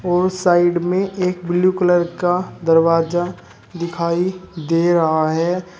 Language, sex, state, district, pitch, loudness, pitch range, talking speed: Hindi, male, Uttar Pradesh, Shamli, 175 Hz, -18 LUFS, 170-180 Hz, 125 wpm